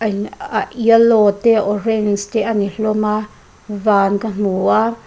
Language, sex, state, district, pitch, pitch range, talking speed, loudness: Mizo, female, Mizoram, Aizawl, 215 Hz, 205-225 Hz, 140 wpm, -16 LUFS